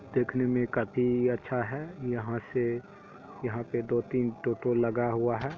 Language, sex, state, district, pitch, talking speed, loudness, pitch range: Hindi, male, Bihar, Saharsa, 120 Hz, 170 wpm, -30 LUFS, 120-125 Hz